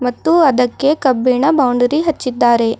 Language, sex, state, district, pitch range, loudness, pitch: Kannada, female, Karnataka, Bidar, 245-290 Hz, -14 LUFS, 255 Hz